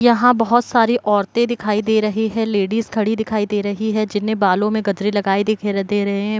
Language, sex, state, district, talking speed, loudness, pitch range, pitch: Hindi, female, Bihar, Kishanganj, 215 wpm, -18 LUFS, 205-225 Hz, 215 Hz